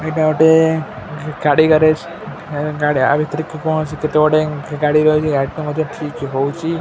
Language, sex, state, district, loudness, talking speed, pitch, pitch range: Odia, female, Odisha, Khordha, -16 LUFS, 185 wpm, 155 Hz, 150-155 Hz